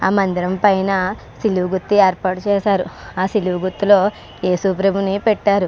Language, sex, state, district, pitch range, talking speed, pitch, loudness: Telugu, female, Andhra Pradesh, Krishna, 185-200 Hz, 150 wpm, 195 Hz, -18 LUFS